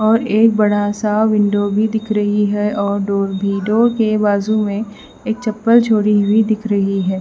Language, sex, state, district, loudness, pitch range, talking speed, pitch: Hindi, female, Haryana, Rohtak, -16 LUFS, 205-220 Hz, 190 wpm, 210 Hz